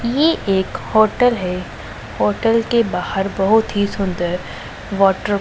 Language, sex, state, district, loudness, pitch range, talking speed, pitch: Hindi, female, Punjab, Pathankot, -18 LUFS, 195-230 Hz, 135 wpm, 205 Hz